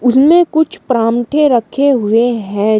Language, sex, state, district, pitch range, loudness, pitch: Hindi, female, Uttar Pradesh, Shamli, 225-295 Hz, -12 LUFS, 245 Hz